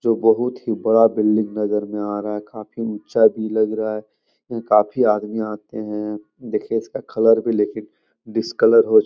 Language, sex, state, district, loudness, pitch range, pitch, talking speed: Hindi, male, Bihar, Jahanabad, -20 LUFS, 105-115 Hz, 110 Hz, 200 wpm